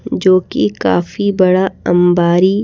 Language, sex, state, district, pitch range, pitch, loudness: Hindi, female, Madhya Pradesh, Bhopal, 170-190 Hz, 180 Hz, -13 LUFS